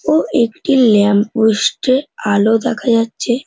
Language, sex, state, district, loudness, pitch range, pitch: Bengali, male, West Bengal, North 24 Parganas, -14 LUFS, 220-270 Hz, 235 Hz